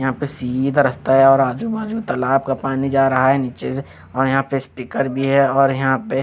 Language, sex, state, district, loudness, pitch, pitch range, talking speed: Hindi, male, Chandigarh, Chandigarh, -18 LUFS, 135 Hz, 130-135 Hz, 230 wpm